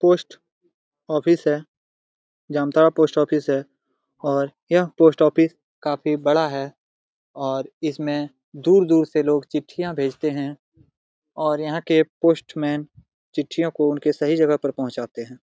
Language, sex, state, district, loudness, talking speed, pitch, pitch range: Hindi, male, Jharkhand, Jamtara, -21 LUFS, 135 wpm, 150 Hz, 145-160 Hz